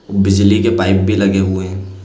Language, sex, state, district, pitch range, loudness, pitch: Hindi, male, Chhattisgarh, Balrampur, 95-100 Hz, -13 LUFS, 95 Hz